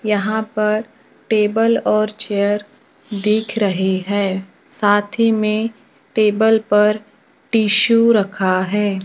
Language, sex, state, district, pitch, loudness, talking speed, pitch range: Hindi, male, Maharashtra, Gondia, 210 Hz, -17 LUFS, 100 wpm, 205-220 Hz